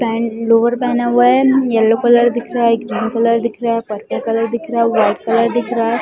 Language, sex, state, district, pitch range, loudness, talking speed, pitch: Hindi, female, Chhattisgarh, Balrampur, 230-240 Hz, -15 LUFS, 270 wpm, 230 Hz